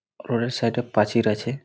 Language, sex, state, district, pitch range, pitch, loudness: Bengali, male, West Bengal, Malda, 115-120 Hz, 115 Hz, -23 LUFS